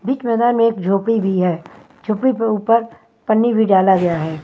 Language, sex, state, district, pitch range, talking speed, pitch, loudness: Hindi, female, Himachal Pradesh, Shimla, 190-230 Hz, 200 wpm, 220 Hz, -16 LUFS